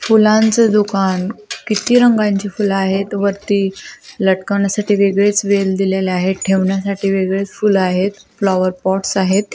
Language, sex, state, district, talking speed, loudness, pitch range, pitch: Marathi, female, Maharashtra, Pune, 130 wpm, -15 LUFS, 190-205 Hz, 200 Hz